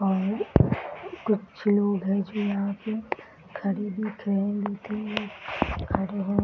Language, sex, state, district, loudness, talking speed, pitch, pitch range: Hindi, female, Bihar, Muzaffarpur, -28 LUFS, 85 wpm, 205 Hz, 200-215 Hz